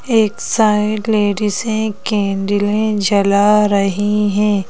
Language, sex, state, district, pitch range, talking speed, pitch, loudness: Hindi, female, Madhya Pradesh, Bhopal, 205-215 Hz, 100 wpm, 210 Hz, -15 LUFS